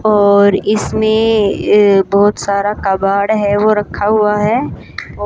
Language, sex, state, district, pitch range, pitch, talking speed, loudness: Hindi, female, Haryana, Charkhi Dadri, 200-215 Hz, 205 Hz, 125 wpm, -12 LUFS